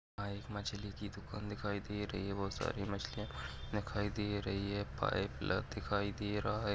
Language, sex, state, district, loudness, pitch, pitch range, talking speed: Hindi, male, Uttar Pradesh, Deoria, -40 LUFS, 100 Hz, 100-105 Hz, 195 wpm